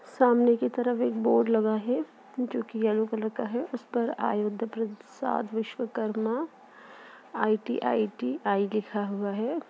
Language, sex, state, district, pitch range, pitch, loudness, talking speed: Hindi, female, Uttar Pradesh, Jalaun, 215-245 Hz, 225 Hz, -28 LUFS, 130 wpm